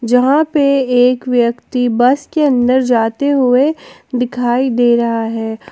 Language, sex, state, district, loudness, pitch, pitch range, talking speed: Hindi, female, Jharkhand, Palamu, -14 LUFS, 250 Hz, 240-270 Hz, 135 wpm